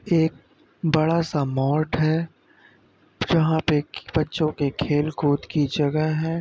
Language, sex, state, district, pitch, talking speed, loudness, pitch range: Hindi, male, Uttar Pradesh, Muzaffarnagar, 155 Hz, 120 wpm, -23 LUFS, 145-160 Hz